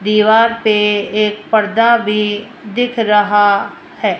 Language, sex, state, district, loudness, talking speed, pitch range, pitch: Hindi, female, Rajasthan, Jaipur, -13 LUFS, 115 wpm, 210-225 Hz, 210 Hz